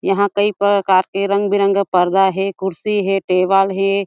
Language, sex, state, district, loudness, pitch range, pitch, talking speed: Chhattisgarhi, female, Chhattisgarh, Jashpur, -16 LUFS, 190-200 Hz, 195 Hz, 175 wpm